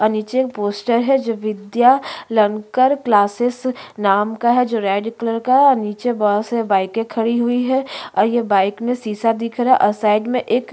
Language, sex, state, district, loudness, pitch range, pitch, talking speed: Hindi, female, Maharashtra, Aurangabad, -17 LUFS, 210-245 Hz, 230 Hz, 220 wpm